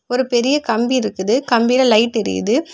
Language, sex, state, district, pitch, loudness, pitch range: Tamil, female, Tamil Nadu, Kanyakumari, 240 Hz, -16 LUFS, 225-255 Hz